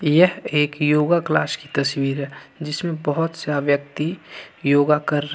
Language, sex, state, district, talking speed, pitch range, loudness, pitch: Hindi, male, Jharkhand, Ranchi, 170 wpm, 145-165 Hz, -21 LUFS, 150 Hz